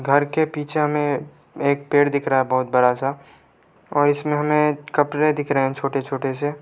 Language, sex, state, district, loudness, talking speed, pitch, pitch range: Hindi, male, Uttar Pradesh, Lalitpur, -21 LUFS, 200 wpm, 145 Hz, 135-150 Hz